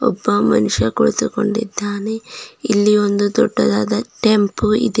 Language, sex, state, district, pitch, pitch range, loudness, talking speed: Kannada, female, Karnataka, Bidar, 210 Hz, 200-220 Hz, -17 LUFS, 95 wpm